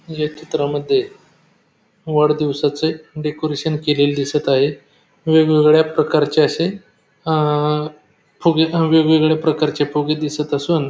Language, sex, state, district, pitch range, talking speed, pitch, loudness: Marathi, male, Maharashtra, Pune, 150-160 Hz, 105 wpm, 155 Hz, -17 LUFS